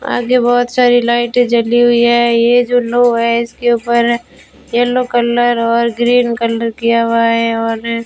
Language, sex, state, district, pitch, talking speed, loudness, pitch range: Hindi, female, Rajasthan, Bikaner, 235 Hz, 170 wpm, -13 LUFS, 230-245 Hz